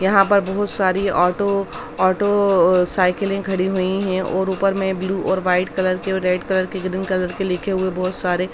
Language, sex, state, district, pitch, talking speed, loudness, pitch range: Hindi, female, Bihar, Samastipur, 190 Hz, 210 wpm, -19 LUFS, 185-195 Hz